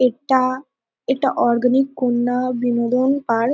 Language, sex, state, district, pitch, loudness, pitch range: Bengali, female, West Bengal, North 24 Parganas, 255 Hz, -19 LUFS, 240-265 Hz